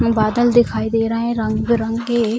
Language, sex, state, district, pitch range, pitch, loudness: Hindi, female, Bihar, Jamui, 220-235 Hz, 230 Hz, -17 LUFS